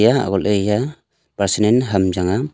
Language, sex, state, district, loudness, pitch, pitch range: Wancho, male, Arunachal Pradesh, Longding, -18 LUFS, 105 Hz, 95-125 Hz